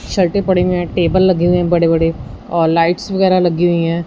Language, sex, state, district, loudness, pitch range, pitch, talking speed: Hindi, female, Punjab, Fazilka, -14 LUFS, 165-185 Hz, 175 Hz, 205 wpm